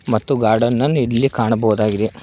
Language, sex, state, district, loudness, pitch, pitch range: Kannada, male, Karnataka, Koppal, -17 LUFS, 115 Hz, 110-125 Hz